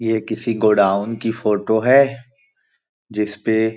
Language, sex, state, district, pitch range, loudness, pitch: Hindi, male, Chhattisgarh, Balrampur, 105-115 Hz, -18 LUFS, 110 Hz